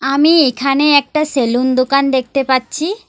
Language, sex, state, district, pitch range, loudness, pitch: Bengali, female, West Bengal, Alipurduar, 260-295 Hz, -13 LUFS, 275 Hz